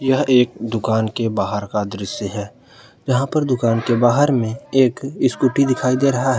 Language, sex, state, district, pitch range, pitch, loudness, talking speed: Hindi, male, Jharkhand, Ranchi, 110-130 Hz, 120 Hz, -18 LUFS, 185 wpm